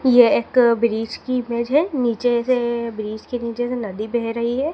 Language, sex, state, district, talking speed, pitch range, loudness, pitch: Hindi, female, Madhya Pradesh, Dhar, 200 wpm, 230-250 Hz, -20 LUFS, 235 Hz